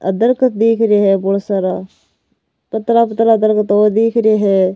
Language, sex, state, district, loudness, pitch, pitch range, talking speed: Rajasthani, female, Rajasthan, Nagaur, -13 LUFS, 215 Hz, 195-225 Hz, 175 wpm